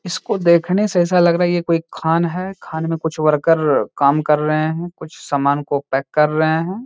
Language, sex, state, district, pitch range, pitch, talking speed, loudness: Hindi, male, Bihar, Saharsa, 150-175 Hz, 165 Hz, 220 wpm, -17 LUFS